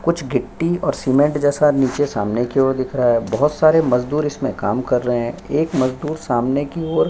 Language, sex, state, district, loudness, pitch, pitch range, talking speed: Hindi, male, Chhattisgarh, Sukma, -18 LUFS, 135 Hz, 125-150 Hz, 220 wpm